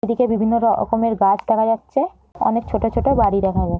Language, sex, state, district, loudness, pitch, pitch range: Bengali, female, West Bengal, Jhargram, -18 LUFS, 225 Hz, 210-230 Hz